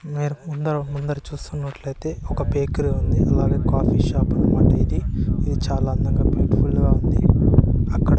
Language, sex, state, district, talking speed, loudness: Telugu, male, Andhra Pradesh, Annamaya, 145 wpm, -21 LUFS